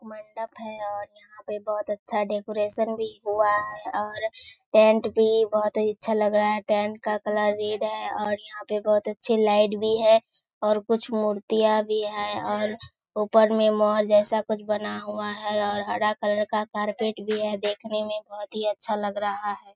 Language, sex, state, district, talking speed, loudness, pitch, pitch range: Hindi, female, Bihar, Kishanganj, 185 wpm, -25 LUFS, 210 Hz, 210-215 Hz